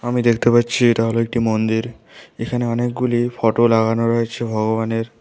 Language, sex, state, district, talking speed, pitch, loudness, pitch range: Bengali, female, West Bengal, Alipurduar, 150 wpm, 115 Hz, -18 LUFS, 115-120 Hz